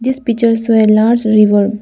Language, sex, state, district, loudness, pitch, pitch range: English, female, Arunachal Pradesh, Lower Dibang Valley, -11 LUFS, 225 Hz, 215-235 Hz